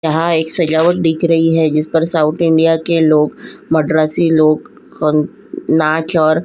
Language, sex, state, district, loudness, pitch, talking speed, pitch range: Hindi, female, Uttar Pradesh, Jyotiba Phule Nagar, -14 LUFS, 160 Hz, 160 wpm, 155-165 Hz